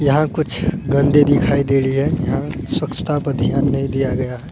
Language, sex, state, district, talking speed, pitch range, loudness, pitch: Hindi, male, Bihar, Araria, 200 wpm, 135-145 Hz, -18 LUFS, 140 Hz